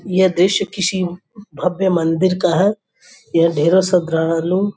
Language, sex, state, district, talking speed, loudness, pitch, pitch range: Hindi, male, Uttar Pradesh, Gorakhpur, 140 wpm, -17 LUFS, 185 Hz, 170-190 Hz